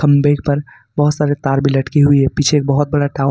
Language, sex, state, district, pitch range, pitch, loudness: Hindi, male, Jharkhand, Ranchi, 140-145 Hz, 145 Hz, -15 LUFS